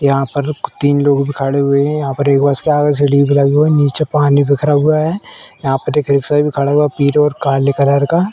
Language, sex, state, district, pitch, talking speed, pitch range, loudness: Hindi, female, Uttar Pradesh, Etah, 145 Hz, 260 wpm, 140-150 Hz, -13 LUFS